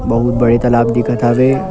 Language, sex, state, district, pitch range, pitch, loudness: Chhattisgarhi, male, Chhattisgarh, Kabirdham, 120-125 Hz, 120 Hz, -13 LUFS